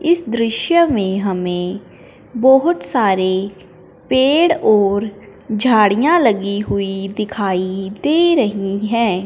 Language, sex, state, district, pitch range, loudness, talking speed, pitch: Hindi, female, Punjab, Fazilka, 195-260 Hz, -16 LUFS, 95 wpm, 210 Hz